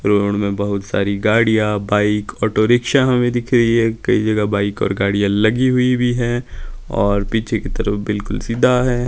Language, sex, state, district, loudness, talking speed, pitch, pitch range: Hindi, male, Himachal Pradesh, Shimla, -17 LUFS, 185 wpm, 110 Hz, 100-120 Hz